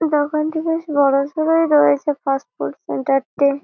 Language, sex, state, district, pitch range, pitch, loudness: Bengali, female, West Bengal, Malda, 275-310 Hz, 290 Hz, -18 LUFS